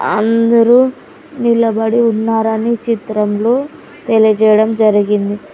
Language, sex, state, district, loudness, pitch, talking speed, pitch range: Telugu, female, Andhra Pradesh, Sri Satya Sai, -13 LUFS, 225 Hz, 65 wpm, 215-235 Hz